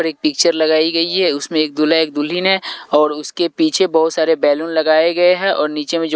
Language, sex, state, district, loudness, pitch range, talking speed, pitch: Hindi, male, Punjab, Pathankot, -15 LUFS, 155-170 Hz, 235 wpm, 160 Hz